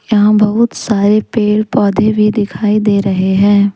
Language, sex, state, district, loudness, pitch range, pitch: Hindi, female, Jharkhand, Deoghar, -12 LUFS, 200-215 Hz, 210 Hz